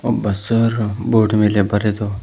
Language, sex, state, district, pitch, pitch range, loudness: Kannada, male, Karnataka, Koppal, 105 Hz, 105-115 Hz, -17 LUFS